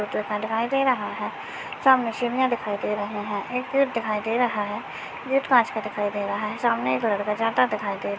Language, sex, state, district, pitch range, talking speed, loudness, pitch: Hindi, male, Maharashtra, Nagpur, 210-245 Hz, 205 wpm, -24 LUFS, 220 Hz